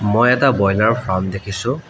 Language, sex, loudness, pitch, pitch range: Assamese, male, -17 LUFS, 110 Hz, 100-125 Hz